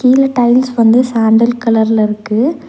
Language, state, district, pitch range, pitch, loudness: Tamil, Tamil Nadu, Nilgiris, 225-250 Hz, 235 Hz, -11 LUFS